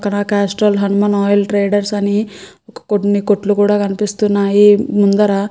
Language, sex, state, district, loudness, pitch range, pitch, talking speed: Telugu, female, Andhra Pradesh, Guntur, -14 LUFS, 200-205 Hz, 205 Hz, 130 wpm